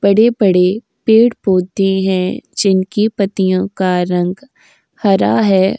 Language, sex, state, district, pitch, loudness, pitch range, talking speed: Hindi, female, Uttar Pradesh, Jyotiba Phule Nagar, 195 Hz, -14 LUFS, 185-220 Hz, 95 wpm